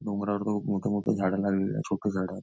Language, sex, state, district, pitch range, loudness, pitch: Marathi, male, Maharashtra, Nagpur, 95-100 Hz, -29 LUFS, 100 Hz